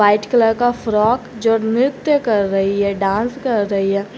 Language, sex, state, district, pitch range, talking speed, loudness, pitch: Hindi, female, Jharkhand, Garhwa, 200-245 Hz, 185 wpm, -17 LUFS, 220 Hz